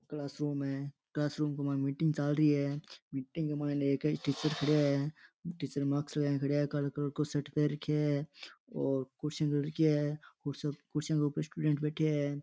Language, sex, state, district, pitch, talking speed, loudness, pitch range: Rajasthani, male, Rajasthan, Nagaur, 145 Hz, 175 wpm, -34 LUFS, 140-150 Hz